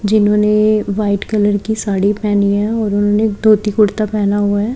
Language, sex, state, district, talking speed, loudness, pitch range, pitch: Hindi, female, Haryana, Charkhi Dadri, 175 wpm, -14 LUFS, 205-215 Hz, 210 Hz